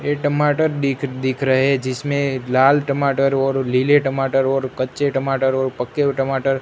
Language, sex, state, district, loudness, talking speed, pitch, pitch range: Hindi, male, Gujarat, Gandhinagar, -19 LUFS, 165 wpm, 135 Hz, 130-140 Hz